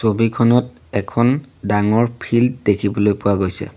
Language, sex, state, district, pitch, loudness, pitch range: Assamese, male, Assam, Sonitpur, 110 Hz, -18 LUFS, 100-120 Hz